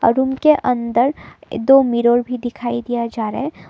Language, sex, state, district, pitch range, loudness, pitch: Hindi, female, Assam, Kamrup Metropolitan, 235-265 Hz, -17 LUFS, 245 Hz